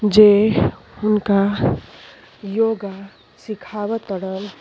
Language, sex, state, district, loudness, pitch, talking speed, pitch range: Bhojpuri, female, Uttar Pradesh, Deoria, -19 LUFS, 205 Hz, 65 wpm, 195-215 Hz